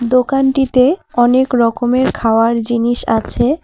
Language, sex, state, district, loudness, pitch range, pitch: Bengali, female, West Bengal, Alipurduar, -14 LUFS, 235-265 Hz, 245 Hz